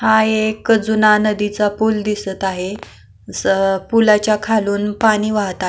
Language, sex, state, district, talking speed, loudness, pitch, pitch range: Marathi, female, Maharashtra, Pune, 135 wpm, -16 LUFS, 210 Hz, 205-220 Hz